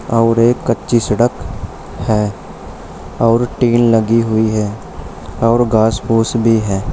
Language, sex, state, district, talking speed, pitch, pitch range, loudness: Hindi, male, Uttar Pradesh, Shamli, 130 wpm, 115 Hz, 110-120 Hz, -14 LUFS